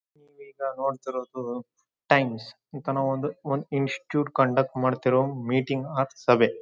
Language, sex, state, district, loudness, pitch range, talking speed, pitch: Kannada, male, Karnataka, Dharwad, -26 LUFS, 130-140 Hz, 110 wpm, 135 Hz